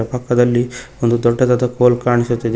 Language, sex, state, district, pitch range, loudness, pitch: Kannada, male, Karnataka, Koppal, 120-125 Hz, -16 LUFS, 120 Hz